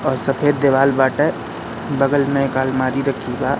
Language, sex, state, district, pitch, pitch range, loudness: Hindi, male, Madhya Pradesh, Katni, 135 Hz, 130-140 Hz, -18 LUFS